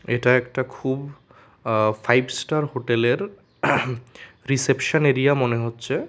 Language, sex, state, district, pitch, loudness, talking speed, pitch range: Bengali, male, Tripura, West Tripura, 130 Hz, -22 LUFS, 110 wpm, 120-140 Hz